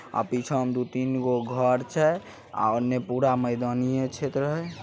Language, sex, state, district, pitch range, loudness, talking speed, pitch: Maithili, male, Bihar, Samastipur, 125-135 Hz, -26 LUFS, 175 wpm, 125 Hz